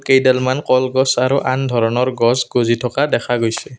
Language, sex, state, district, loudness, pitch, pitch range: Assamese, male, Assam, Kamrup Metropolitan, -16 LUFS, 130 Hz, 120-130 Hz